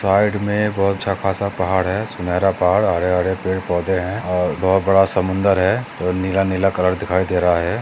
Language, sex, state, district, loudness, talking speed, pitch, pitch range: Hindi, male, Maharashtra, Sindhudurg, -18 LUFS, 205 wpm, 95 Hz, 90-100 Hz